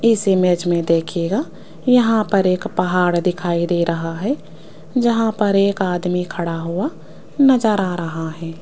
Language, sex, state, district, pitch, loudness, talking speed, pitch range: Hindi, female, Rajasthan, Jaipur, 180 Hz, -18 LUFS, 155 wpm, 170-215 Hz